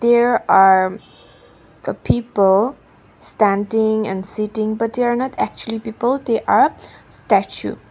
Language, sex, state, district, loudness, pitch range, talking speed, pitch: English, female, Nagaland, Dimapur, -18 LUFS, 205-240 Hz, 120 wpm, 220 Hz